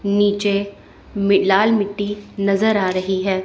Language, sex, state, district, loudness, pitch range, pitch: Hindi, female, Chandigarh, Chandigarh, -18 LUFS, 195-205 Hz, 200 Hz